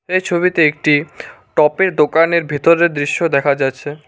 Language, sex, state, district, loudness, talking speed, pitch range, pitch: Bengali, male, West Bengal, Cooch Behar, -15 LUFS, 130 wpm, 145-170 Hz, 155 Hz